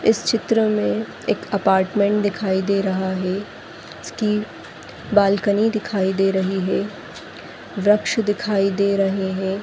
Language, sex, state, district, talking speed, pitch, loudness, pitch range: Hindi, female, Bihar, Purnia, 125 wpm, 200 Hz, -20 LUFS, 190-210 Hz